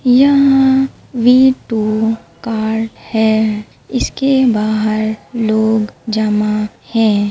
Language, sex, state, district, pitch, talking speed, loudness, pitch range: Hindi, female, Bihar, Begusarai, 220 Hz, 90 wpm, -14 LUFS, 215-250 Hz